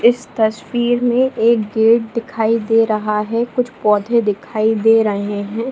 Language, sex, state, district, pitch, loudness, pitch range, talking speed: Hindi, female, Bihar, Jahanabad, 225 Hz, -16 LUFS, 215-235 Hz, 170 wpm